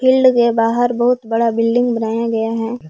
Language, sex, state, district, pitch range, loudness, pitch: Hindi, female, Jharkhand, Palamu, 225-245 Hz, -16 LUFS, 230 Hz